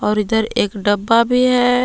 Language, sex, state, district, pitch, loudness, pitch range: Hindi, female, Jharkhand, Palamu, 225 Hz, -16 LUFS, 210-245 Hz